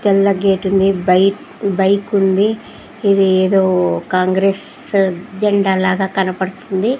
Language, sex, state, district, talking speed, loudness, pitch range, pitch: Telugu, female, Andhra Pradesh, Sri Satya Sai, 105 wpm, -15 LUFS, 190-200 Hz, 195 Hz